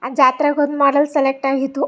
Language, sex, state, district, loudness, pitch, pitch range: Kannada, female, Karnataka, Chamarajanagar, -16 LUFS, 280 Hz, 270-290 Hz